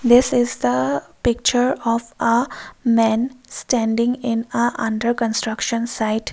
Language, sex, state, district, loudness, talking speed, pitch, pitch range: English, female, Assam, Kamrup Metropolitan, -20 LUFS, 125 wpm, 235 Hz, 225-245 Hz